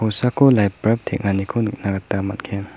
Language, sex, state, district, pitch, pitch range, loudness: Garo, male, Meghalaya, South Garo Hills, 100 Hz, 100-115 Hz, -20 LUFS